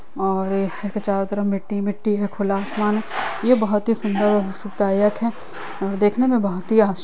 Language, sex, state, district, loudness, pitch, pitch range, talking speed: Hindi, female, Bihar, Lakhisarai, -21 LUFS, 205 Hz, 195-210 Hz, 205 wpm